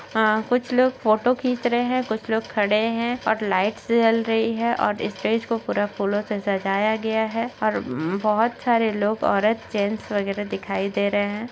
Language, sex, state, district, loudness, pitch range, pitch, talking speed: Hindi, female, Bihar, Saharsa, -22 LUFS, 205-230 Hz, 220 Hz, 190 wpm